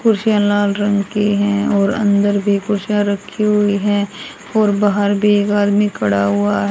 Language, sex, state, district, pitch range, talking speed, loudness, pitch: Hindi, female, Haryana, Charkhi Dadri, 200-210 Hz, 180 wpm, -16 LUFS, 205 Hz